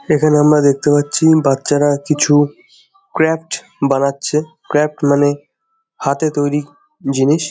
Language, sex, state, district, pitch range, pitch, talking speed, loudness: Bengali, male, West Bengal, Jhargram, 145-160 Hz, 150 Hz, 105 wpm, -15 LUFS